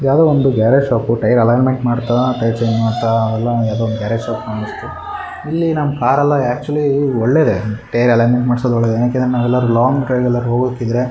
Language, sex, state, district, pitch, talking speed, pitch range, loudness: Kannada, male, Karnataka, Shimoga, 120 Hz, 185 wpm, 115-135 Hz, -15 LUFS